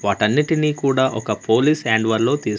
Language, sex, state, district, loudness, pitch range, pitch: Telugu, male, Andhra Pradesh, Manyam, -18 LUFS, 110-145 Hz, 115 Hz